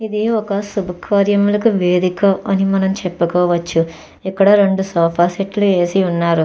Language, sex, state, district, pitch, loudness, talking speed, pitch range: Telugu, female, Andhra Pradesh, Chittoor, 195 Hz, -16 LUFS, 120 wpm, 175-200 Hz